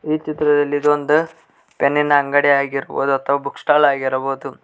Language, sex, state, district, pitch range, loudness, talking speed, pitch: Kannada, male, Karnataka, Koppal, 140-150 Hz, -17 LUFS, 130 wpm, 145 Hz